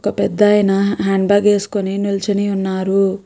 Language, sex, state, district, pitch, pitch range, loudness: Telugu, female, Andhra Pradesh, Guntur, 200 Hz, 195-205 Hz, -16 LUFS